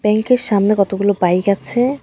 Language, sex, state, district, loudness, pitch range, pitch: Bengali, female, West Bengal, Alipurduar, -15 LUFS, 200-240 Hz, 205 Hz